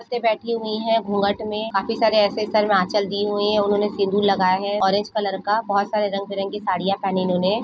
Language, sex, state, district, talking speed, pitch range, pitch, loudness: Hindi, female, Jharkhand, Jamtara, 225 wpm, 195-215 Hz, 205 Hz, -21 LUFS